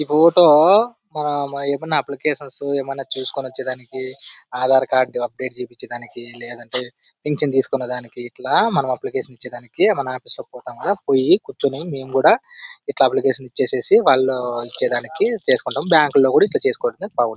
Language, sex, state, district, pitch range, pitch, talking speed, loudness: Telugu, male, Andhra Pradesh, Anantapur, 125-160 Hz, 135 Hz, 135 wpm, -19 LUFS